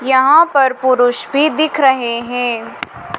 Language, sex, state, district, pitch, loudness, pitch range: Hindi, female, Madhya Pradesh, Dhar, 260 Hz, -13 LUFS, 245-285 Hz